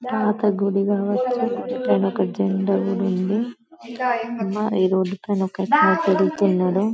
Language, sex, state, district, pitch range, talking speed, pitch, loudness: Telugu, male, Telangana, Karimnagar, 185-230 Hz, 120 wpm, 200 Hz, -21 LUFS